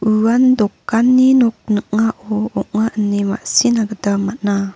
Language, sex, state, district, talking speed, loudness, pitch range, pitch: Garo, female, Meghalaya, North Garo Hills, 115 wpm, -16 LUFS, 205-230 Hz, 215 Hz